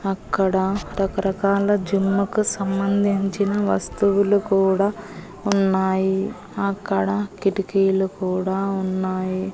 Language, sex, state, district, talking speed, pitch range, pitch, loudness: Telugu, female, Andhra Pradesh, Annamaya, 70 wpm, 190-200 Hz, 195 Hz, -21 LUFS